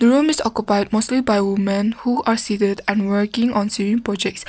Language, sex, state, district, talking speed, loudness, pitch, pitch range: English, female, Nagaland, Kohima, 200 wpm, -19 LUFS, 210 Hz, 200-230 Hz